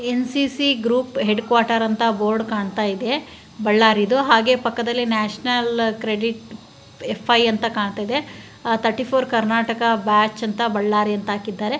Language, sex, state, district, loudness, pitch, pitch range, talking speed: Kannada, female, Karnataka, Bellary, -20 LUFS, 230 Hz, 215-245 Hz, 120 wpm